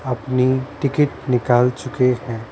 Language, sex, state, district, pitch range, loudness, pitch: Hindi, male, Maharashtra, Mumbai Suburban, 125-130 Hz, -19 LUFS, 130 Hz